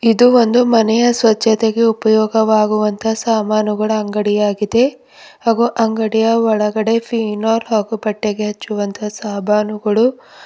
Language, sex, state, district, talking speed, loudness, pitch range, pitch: Kannada, female, Karnataka, Bidar, 85 wpm, -15 LUFS, 210-230 Hz, 220 Hz